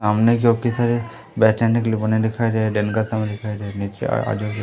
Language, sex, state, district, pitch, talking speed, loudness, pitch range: Hindi, male, Madhya Pradesh, Umaria, 110 Hz, 180 wpm, -20 LUFS, 105-115 Hz